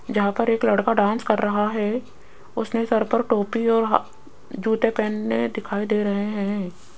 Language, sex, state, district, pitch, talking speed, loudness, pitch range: Hindi, female, Rajasthan, Jaipur, 215 Hz, 165 wpm, -22 LUFS, 205-230 Hz